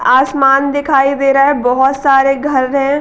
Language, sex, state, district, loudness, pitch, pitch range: Hindi, female, Uttar Pradesh, Gorakhpur, -12 LUFS, 275 Hz, 270-280 Hz